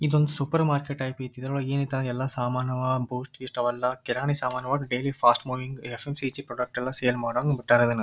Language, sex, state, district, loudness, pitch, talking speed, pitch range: Kannada, male, Karnataka, Dharwad, -27 LUFS, 130 Hz, 195 wpm, 125-140 Hz